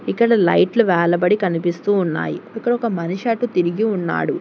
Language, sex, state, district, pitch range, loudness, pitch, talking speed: Telugu, female, Telangana, Hyderabad, 175-230 Hz, -18 LUFS, 195 Hz, 150 wpm